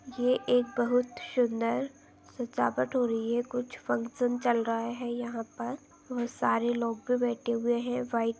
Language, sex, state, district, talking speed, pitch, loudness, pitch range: Hindi, female, Chhattisgarh, Balrampur, 170 wpm, 240 Hz, -30 LUFS, 235-250 Hz